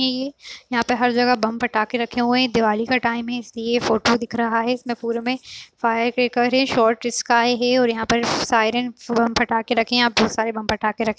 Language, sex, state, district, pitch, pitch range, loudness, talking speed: Hindi, female, Uttar Pradesh, Jyotiba Phule Nagar, 235 Hz, 230-245 Hz, -20 LUFS, 230 wpm